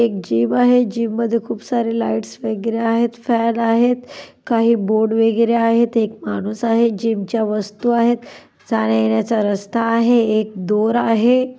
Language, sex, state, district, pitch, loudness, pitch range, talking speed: Marathi, female, Maharashtra, Dhule, 230 Hz, -17 LUFS, 215-235 Hz, 150 wpm